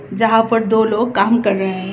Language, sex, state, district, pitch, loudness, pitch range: Hindi, female, Tripura, West Tripura, 220 Hz, -15 LUFS, 200-225 Hz